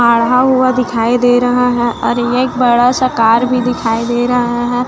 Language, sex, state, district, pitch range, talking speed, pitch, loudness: Hindi, female, Chhattisgarh, Raipur, 240-250 Hz, 210 wpm, 245 Hz, -12 LUFS